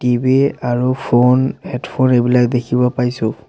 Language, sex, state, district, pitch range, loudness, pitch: Assamese, male, Assam, Sonitpur, 120-130 Hz, -15 LUFS, 125 Hz